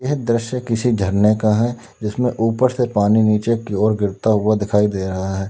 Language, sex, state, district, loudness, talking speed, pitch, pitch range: Hindi, male, Uttar Pradesh, Lalitpur, -18 LUFS, 205 wpm, 110 Hz, 105-120 Hz